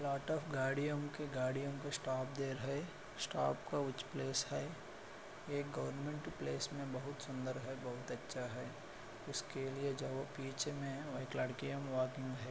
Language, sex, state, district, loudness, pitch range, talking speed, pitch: Hindi, male, Maharashtra, Solapur, -42 LUFS, 130-145 Hz, 145 wpm, 135 Hz